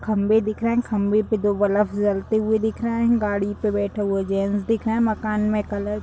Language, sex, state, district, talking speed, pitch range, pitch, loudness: Hindi, female, Bihar, Gopalganj, 250 wpm, 205-220 Hz, 210 Hz, -22 LUFS